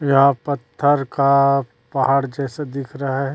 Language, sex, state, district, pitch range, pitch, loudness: Hindi, female, Chhattisgarh, Raipur, 135-140 Hz, 140 Hz, -19 LUFS